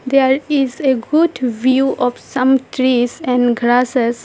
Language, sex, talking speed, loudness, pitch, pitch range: English, female, 140 wpm, -15 LUFS, 260 Hz, 245-270 Hz